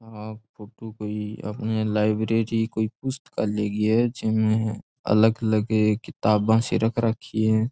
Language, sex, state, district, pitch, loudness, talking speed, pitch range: Rajasthani, male, Rajasthan, Churu, 110 Hz, -24 LUFS, 130 wpm, 105-115 Hz